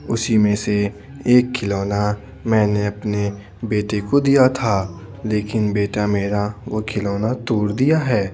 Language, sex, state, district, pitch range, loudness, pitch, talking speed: Hindi, male, Bihar, Patna, 100-115 Hz, -19 LUFS, 105 Hz, 135 wpm